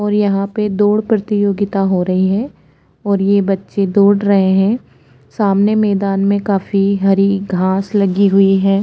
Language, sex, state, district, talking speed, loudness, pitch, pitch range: Hindi, female, Maharashtra, Chandrapur, 165 wpm, -14 LUFS, 200 Hz, 195-205 Hz